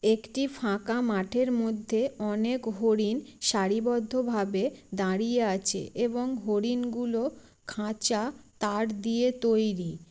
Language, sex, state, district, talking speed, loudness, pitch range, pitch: Bengali, female, West Bengal, Jalpaiguri, 90 wpm, -29 LUFS, 210-245 Hz, 225 Hz